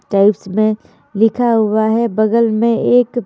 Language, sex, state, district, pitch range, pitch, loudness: Hindi, female, Haryana, Charkhi Dadri, 215-235 Hz, 220 Hz, -14 LUFS